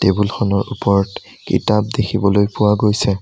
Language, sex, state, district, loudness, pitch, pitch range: Assamese, male, Assam, Sonitpur, -17 LUFS, 105 Hz, 100-110 Hz